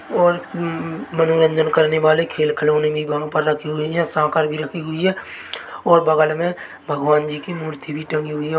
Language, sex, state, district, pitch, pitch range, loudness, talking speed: Hindi, male, Chhattisgarh, Bilaspur, 155 Hz, 150-165 Hz, -19 LUFS, 190 wpm